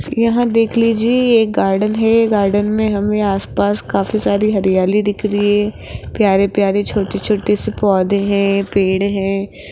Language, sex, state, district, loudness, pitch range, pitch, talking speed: Hindi, female, Rajasthan, Jaipur, -15 LUFS, 200-215 Hz, 205 Hz, 165 wpm